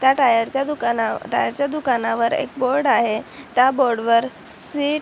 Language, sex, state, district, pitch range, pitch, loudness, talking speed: Marathi, female, Maharashtra, Chandrapur, 230-280 Hz, 260 Hz, -19 LUFS, 165 wpm